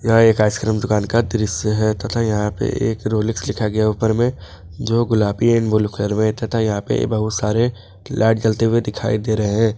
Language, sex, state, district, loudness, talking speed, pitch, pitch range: Hindi, male, Jharkhand, Ranchi, -18 LUFS, 210 wpm, 110 Hz, 105-115 Hz